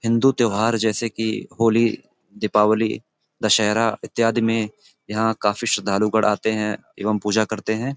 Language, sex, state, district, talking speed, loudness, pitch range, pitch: Hindi, male, Uttar Pradesh, Gorakhpur, 145 wpm, -21 LUFS, 105-115 Hz, 110 Hz